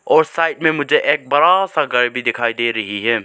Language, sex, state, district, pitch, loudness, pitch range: Hindi, male, Arunachal Pradesh, Lower Dibang Valley, 140 Hz, -16 LUFS, 115-160 Hz